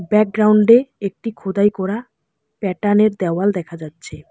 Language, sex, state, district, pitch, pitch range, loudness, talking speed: Bengali, female, West Bengal, Alipurduar, 205 Hz, 190-215 Hz, -17 LUFS, 140 wpm